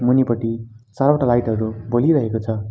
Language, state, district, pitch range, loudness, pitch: Nepali, West Bengal, Darjeeling, 110-125 Hz, -19 LUFS, 115 Hz